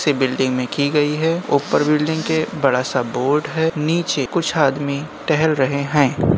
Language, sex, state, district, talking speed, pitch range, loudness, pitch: Hindi, male, Uttar Pradesh, Jyotiba Phule Nagar, 170 wpm, 140-160 Hz, -19 LUFS, 150 Hz